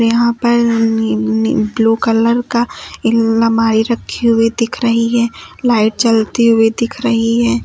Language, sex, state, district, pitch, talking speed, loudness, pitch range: Hindi, female, Uttar Pradesh, Lucknow, 230 Hz, 150 wpm, -14 LUFS, 225-235 Hz